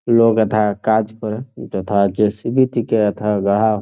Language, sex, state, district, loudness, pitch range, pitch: Bengali, male, West Bengal, Jhargram, -17 LUFS, 105-115 Hz, 110 Hz